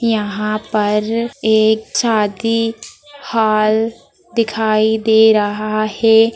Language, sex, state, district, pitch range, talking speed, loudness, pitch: Hindi, female, Bihar, Darbhanga, 215-225 Hz, 85 wpm, -15 LUFS, 220 Hz